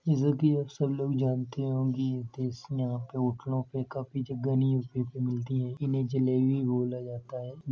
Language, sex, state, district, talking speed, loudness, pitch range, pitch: Hindi, male, Uttar Pradesh, Etah, 180 wpm, -30 LUFS, 125-135 Hz, 130 Hz